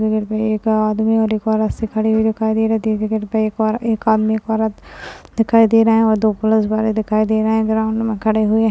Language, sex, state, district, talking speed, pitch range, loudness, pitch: Hindi, female, Bihar, Madhepura, 285 wpm, 215-220 Hz, -17 LUFS, 220 Hz